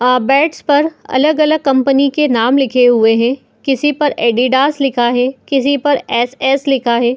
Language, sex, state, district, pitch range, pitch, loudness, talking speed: Hindi, female, Uttar Pradesh, Muzaffarnagar, 245-285 Hz, 270 Hz, -13 LUFS, 175 wpm